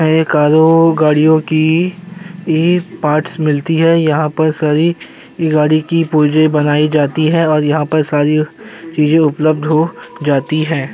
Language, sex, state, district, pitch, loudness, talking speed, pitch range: Hindi, male, Uttar Pradesh, Jyotiba Phule Nagar, 155 Hz, -13 LUFS, 145 wpm, 150-165 Hz